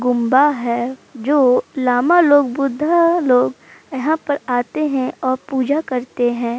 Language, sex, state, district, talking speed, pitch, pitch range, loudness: Hindi, female, Uttar Pradesh, Jalaun, 135 wpm, 260 Hz, 250-295 Hz, -17 LUFS